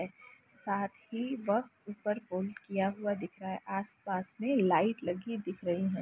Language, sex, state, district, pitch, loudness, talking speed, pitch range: Hindi, female, Bihar, Lakhisarai, 200 Hz, -35 LUFS, 180 wpm, 190-220 Hz